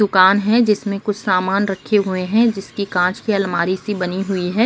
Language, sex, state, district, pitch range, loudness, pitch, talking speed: Hindi, female, Bihar, Darbhanga, 185-210 Hz, -18 LUFS, 195 Hz, 205 wpm